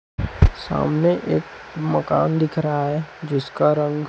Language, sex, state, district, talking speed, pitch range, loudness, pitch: Hindi, male, Chhattisgarh, Raipur, 115 wpm, 100-155 Hz, -21 LUFS, 150 Hz